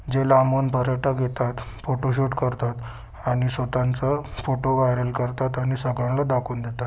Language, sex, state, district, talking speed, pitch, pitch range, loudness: Marathi, male, Maharashtra, Sindhudurg, 140 wpm, 125 Hz, 125-130 Hz, -24 LUFS